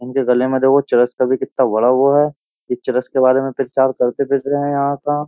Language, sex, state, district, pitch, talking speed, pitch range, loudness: Hindi, male, Uttar Pradesh, Jyotiba Phule Nagar, 135 Hz, 250 wpm, 125-140 Hz, -16 LUFS